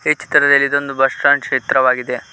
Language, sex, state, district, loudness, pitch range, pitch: Kannada, male, Karnataka, Koppal, -14 LUFS, 130-140 Hz, 135 Hz